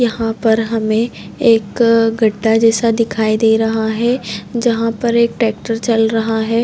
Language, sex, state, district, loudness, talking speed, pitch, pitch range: Hindi, female, Chhattisgarh, Raigarh, -15 LUFS, 165 wpm, 225 Hz, 220-230 Hz